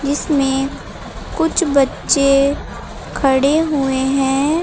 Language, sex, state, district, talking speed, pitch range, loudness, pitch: Hindi, female, Uttar Pradesh, Lucknow, 80 wpm, 270-295 Hz, -16 LUFS, 275 Hz